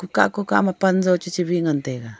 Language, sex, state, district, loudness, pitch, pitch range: Wancho, female, Arunachal Pradesh, Longding, -20 LUFS, 175 Hz, 150-185 Hz